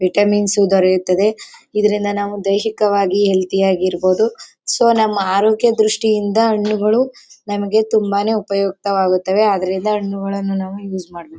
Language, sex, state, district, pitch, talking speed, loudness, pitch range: Kannada, female, Karnataka, Mysore, 205 Hz, 110 wpm, -16 LUFS, 190-215 Hz